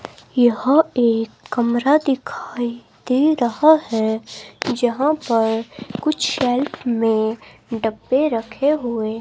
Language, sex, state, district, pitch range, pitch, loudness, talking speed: Hindi, female, Himachal Pradesh, Shimla, 225-275 Hz, 240 Hz, -19 LUFS, 100 wpm